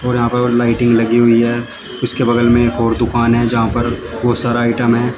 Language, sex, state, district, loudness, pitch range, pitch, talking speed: Hindi, male, Uttar Pradesh, Shamli, -14 LUFS, 115-120 Hz, 120 Hz, 230 wpm